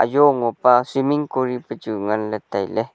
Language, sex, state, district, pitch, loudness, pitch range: Wancho, male, Arunachal Pradesh, Longding, 120 Hz, -20 LUFS, 110-130 Hz